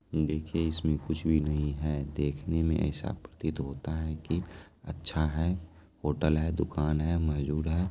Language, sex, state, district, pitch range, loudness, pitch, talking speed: Maithili, male, Bihar, Supaul, 75-80 Hz, -31 LUFS, 80 Hz, 165 wpm